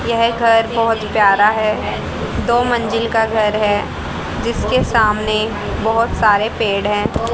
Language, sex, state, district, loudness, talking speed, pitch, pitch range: Hindi, female, Haryana, Rohtak, -16 LUFS, 140 wpm, 220 Hz, 210-230 Hz